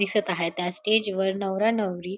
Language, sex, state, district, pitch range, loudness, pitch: Marathi, female, Maharashtra, Dhule, 180-210 Hz, -25 LUFS, 195 Hz